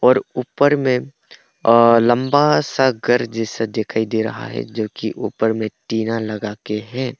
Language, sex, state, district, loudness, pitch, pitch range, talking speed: Hindi, male, Arunachal Pradesh, Papum Pare, -18 LUFS, 115 Hz, 110-130 Hz, 150 wpm